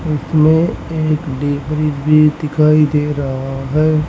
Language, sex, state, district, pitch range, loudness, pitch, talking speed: Hindi, male, Haryana, Rohtak, 145-155 Hz, -15 LUFS, 150 Hz, 130 wpm